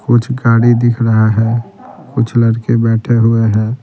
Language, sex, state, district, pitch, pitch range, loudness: Hindi, male, Bihar, Patna, 115 Hz, 115-120 Hz, -12 LUFS